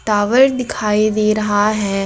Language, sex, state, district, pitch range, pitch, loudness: Hindi, female, Jharkhand, Garhwa, 210-215 Hz, 215 Hz, -15 LUFS